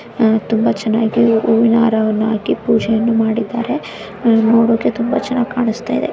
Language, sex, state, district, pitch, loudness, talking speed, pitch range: Kannada, female, Karnataka, Chamarajanagar, 225 Hz, -15 LUFS, 115 wpm, 220-230 Hz